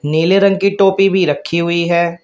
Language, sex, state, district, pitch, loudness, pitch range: Hindi, male, Uttar Pradesh, Shamli, 175 Hz, -13 LUFS, 170-195 Hz